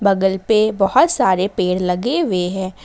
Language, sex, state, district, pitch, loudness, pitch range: Hindi, female, Jharkhand, Ranchi, 190 Hz, -17 LUFS, 185-215 Hz